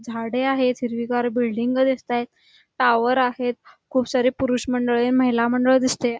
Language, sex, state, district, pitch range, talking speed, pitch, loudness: Marathi, female, Karnataka, Belgaum, 240-255 Hz, 145 wpm, 250 Hz, -21 LUFS